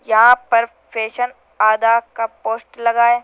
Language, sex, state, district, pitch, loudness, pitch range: Hindi, female, Rajasthan, Jaipur, 230 Hz, -17 LUFS, 225-235 Hz